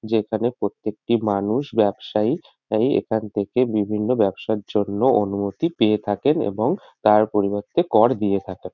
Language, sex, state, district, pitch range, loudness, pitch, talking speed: Bengali, male, West Bengal, North 24 Parganas, 100-110 Hz, -21 LUFS, 105 Hz, 130 wpm